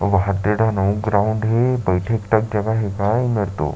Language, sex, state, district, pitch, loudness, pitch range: Chhattisgarhi, male, Chhattisgarh, Sarguja, 105 Hz, -19 LUFS, 100-110 Hz